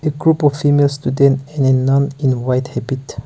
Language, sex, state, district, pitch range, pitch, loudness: English, male, Nagaland, Kohima, 130-145 Hz, 140 Hz, -16 LUFS